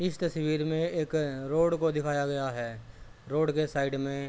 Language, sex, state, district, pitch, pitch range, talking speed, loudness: Hindi, male, Uttar Pradesh, Jalaun, 150 Hz, 135-160 Hz, 195 wpm, -30 LUFS